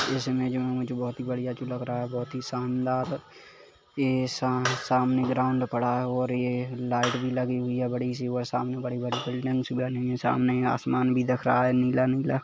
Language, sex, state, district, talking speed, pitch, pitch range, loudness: Hindi, male, Chhattisgarh, Kabirdham, 230 wpm, 125 Hz, 125-130 Hz, -27 LUFS